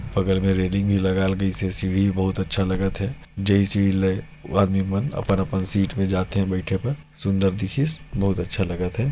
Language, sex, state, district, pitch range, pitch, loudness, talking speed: Chhattisgarhi, male, Chhattisgarh, Sarguja, 95-100 Hz, 95 Hz, -23 LUFS, 190 wpm